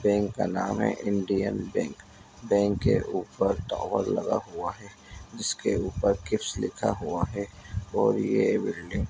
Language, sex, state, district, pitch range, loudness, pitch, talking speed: Hindi, male, Bihar, Begusarai, 95-100 Hz, -28 LUFS, 100 Hz, 150 wpm